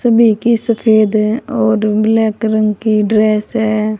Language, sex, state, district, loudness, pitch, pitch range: Hindi, female, Haryana, Rohtak, -13 LUFS, 215 Hz, 215-225 Hz